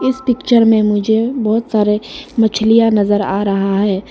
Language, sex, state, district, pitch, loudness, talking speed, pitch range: Hindi, female, Arunachal Pradesh, Lower Dibang Valley, 220 Hz, -14 LUFS, 160 wpm, 205-230 Hz